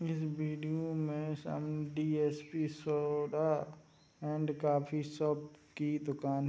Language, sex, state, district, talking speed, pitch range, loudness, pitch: Hindi, male, Bihar, Sitamarhi, 110 wpm, 150-155 Hz, -36 LUFS, 150 Hz